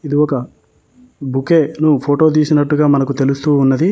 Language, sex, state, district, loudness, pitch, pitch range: Telugu, male, Telangana, Mahabubabad, -14 LUFS, 145 Hz, 140-155 Hz